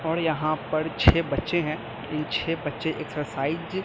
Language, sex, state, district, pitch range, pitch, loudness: Hindi, male, Chhattisgarh, Raipur, 150-165 Hz, 155 Hz, -26 LUFS